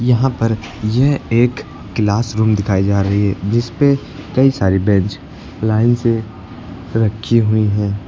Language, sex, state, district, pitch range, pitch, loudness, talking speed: Hindi, male, Uttar Pradesh, Lucknow, 100-120 Hz, 110 Hz, -16 LUFS, 150 wpm